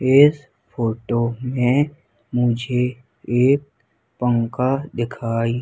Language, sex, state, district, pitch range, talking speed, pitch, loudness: Hindi, male, Madhya Pradesh, Umaria, 115-130 Hz, 75 wpm, 125 Hz, -20 LUFS